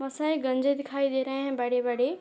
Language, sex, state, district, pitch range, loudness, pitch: Hindi, female, Jharkhand, Sahebganj, 255-280 Hz, -28 LUFS, 270 Hz